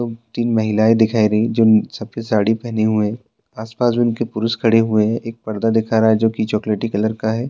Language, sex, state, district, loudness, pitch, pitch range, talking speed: Hindi, male, Uttarakhand, Tehri Garhwal, -17 LUFS, 110 Hz, 110-115 Hz, 230 wpm